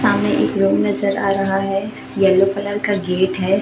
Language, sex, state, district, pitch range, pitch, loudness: Hindi, female, Chhattisgarh, Raipur, 190-200 Hz, 195 Hz, -18 LUFS